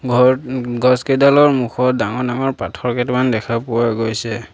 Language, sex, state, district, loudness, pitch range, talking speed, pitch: Assamese, male, Assam, Sonitpur, -16 LUFS, 115-130 Hz, 145 wpm, 125 Hz